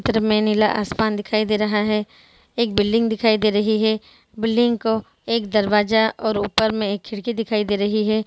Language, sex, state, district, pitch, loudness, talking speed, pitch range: Hindi, female, Bihar, Sitamarhi, 215 Hz, -20 LUFS, 190 wpm, 210-220 Hz